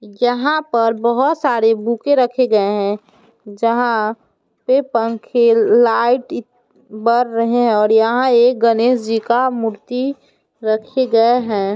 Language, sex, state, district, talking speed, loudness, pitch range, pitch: Hindi, female, Bihar, Muzaffarpur, 135 wpm, -16 LUFS, 225-255 Hz, 235 Hz